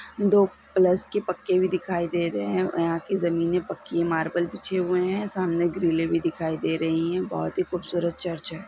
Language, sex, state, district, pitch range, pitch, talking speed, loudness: Hindi, female, Bihar, Lakhisarai, 165-185 Hz, 175 Hz, 205 wpm, -25 LUFS